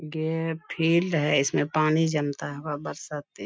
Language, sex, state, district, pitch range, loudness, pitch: Hindi, female, Bihar, Bhagalpur, 145-160 Hz, -26 LUFS, 155 Hz